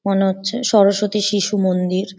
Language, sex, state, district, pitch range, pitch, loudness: Bengali, female, West Bengal, Paschim Medinipur, 190-210 Hz, 200 Hz, -17 LUFS